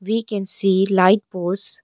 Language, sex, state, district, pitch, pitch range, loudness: English, female, Arunachal Pradesh, Longding, 195 Hz, 190-215 Hz, -19 LUFS